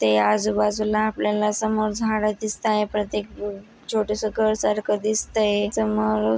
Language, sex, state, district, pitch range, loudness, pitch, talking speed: Marathi, female, Maharashtra, Dhule, 205-215 Hz, -23 LUFS, 210 Hz, 115 wpm